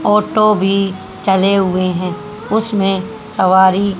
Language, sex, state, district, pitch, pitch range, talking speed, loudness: Hindi, female, Haryana, Charkhi Dadri, 195 Hz, 190-210 Hz, 90 wpm, -14 LUFS